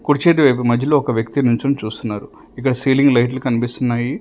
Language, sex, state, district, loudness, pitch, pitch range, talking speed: Telugu, male, Telangana, Hyderabad, -17 LUFS, 125 Hz, 120-140 Hz, 170 wpm